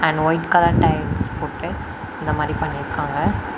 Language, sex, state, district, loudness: Tamil, female, Tamil Nadu, Kanyakumari, -21 LUFS